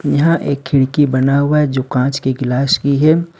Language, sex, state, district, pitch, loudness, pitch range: Hindi, male, Jharkhand, Ranchi, 140 Hz, -14 LUFS, 130-150 Hz